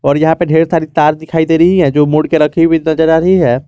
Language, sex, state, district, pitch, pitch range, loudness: Hindi, male, Jharkhand, Garhwa, 160 Hz, 155-165 Hz, -11 LUFS